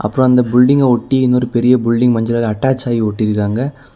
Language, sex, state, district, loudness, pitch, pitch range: Tamil, male, Tamil Nadu, Kanyakumari, -14 LUFS, 125 Hz, 115-130 Hz